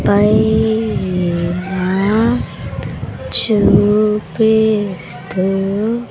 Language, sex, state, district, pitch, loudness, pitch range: Telugu, female, Andhra Pradesh, Sri Satya Sai, 190 Hz, -15 LUFS, 155-215 Hz